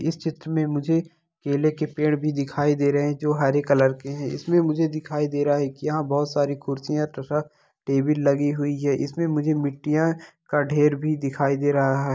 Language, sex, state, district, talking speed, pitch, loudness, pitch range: Angika, male, Bihar, Madhepura, 210 wpm, 145 Hz, -23 LUFS, 140-155 Hz